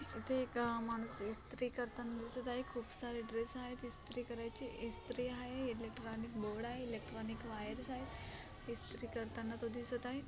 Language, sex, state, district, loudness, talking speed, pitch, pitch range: Marathi, female, Maharashtra, Solapur, -43 LUFS, 150 wpm, 235 Hz, 230-250 Hz